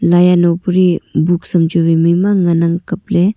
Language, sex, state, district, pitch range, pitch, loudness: Wancho, female, Arunachal Pradesh, Longding, 170-180 Hz, 175 Hz, -13 LUFS